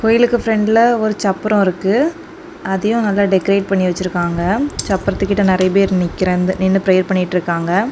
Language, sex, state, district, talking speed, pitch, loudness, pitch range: Tamil, female, Tamil Nadu, Kanyakumari, 135 wpm, 195 Hz, -15 LUFS, 185-220 Hz